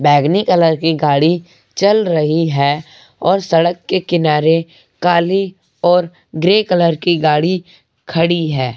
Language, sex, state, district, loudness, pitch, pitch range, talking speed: Hindi, male, Goa, North and South Goa, -14 LUFS, 165 Hz, 155-180 Hz, 130 wpm